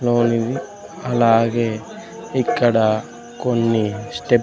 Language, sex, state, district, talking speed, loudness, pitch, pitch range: Telugu, male, Andhra Pradesh, Sri Satya Sai, 80 wpm, -19 LUFS, 120 Hz, 115-120 Hz